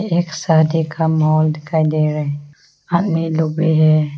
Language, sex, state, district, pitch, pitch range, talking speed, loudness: Hindi, female, Arunachal Pradesh, Lower Dibang Valley, 155 Hz, 155-165 Hz, 170 wpm, -17 LUFS